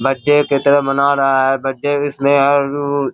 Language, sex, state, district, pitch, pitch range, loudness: Hindi, male, Bihar, Bhagalpur, 140 Hz, 135-145 Hz, -15 LUFS